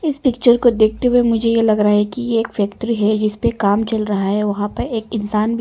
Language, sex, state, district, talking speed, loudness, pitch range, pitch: Hindi, female, Arunachal Pradesh, Longding, 265 wpm, -17 LUFS, 210-235 Hz, 220 Hz